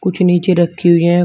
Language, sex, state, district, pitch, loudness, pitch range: Hindi, male, Uttar Pradesh, Shamli, 175 Hz, -13 LUFS, 175-185 Hz